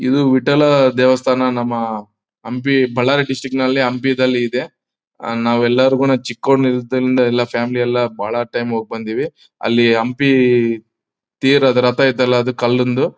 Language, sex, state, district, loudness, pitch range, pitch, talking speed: Kannada, male, Karnataka, Bellary, -16 LUFS, 120-130 Hz, 125 Hz, 130 wpm